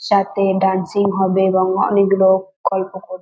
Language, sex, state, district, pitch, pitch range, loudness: Bengali, female, West Bengal, North 24 Parganas, 190 Hz, 190-195 Hz, -16 LUFS